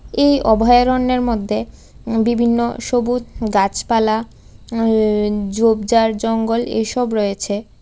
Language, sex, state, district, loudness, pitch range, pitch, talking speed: Bengali, female, Tripura, West Tripura, -17 LUFS, 220-240 Hz, 225 Hz, 100 wpm